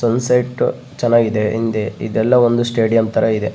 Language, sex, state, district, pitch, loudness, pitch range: Kannada, male, Karnataka, Bellary, 115 Hz, -16 LUFS, 110-120 Hz